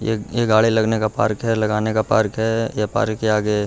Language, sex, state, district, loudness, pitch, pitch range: Hindi, male, Bihar, Gaya, -19 LUFS, 110 Hz, 105-110 Hz